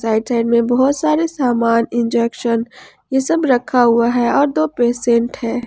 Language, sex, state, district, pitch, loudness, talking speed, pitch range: Hindi, female, Jharkhand, Ranchi, 240 Hz, -16 LUFS, 170 wpm, 235-265 Hz